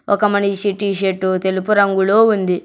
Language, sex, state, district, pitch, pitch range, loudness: Telugu, male, Telangana, Hyderabad, 200 Hz, 190-205 Hz, -16 LUFS